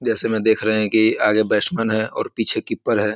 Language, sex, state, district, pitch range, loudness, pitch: Hindi, male, Bihar, Muzaffarpur, 105-110 Hz, -19 LUFS, 110 Hz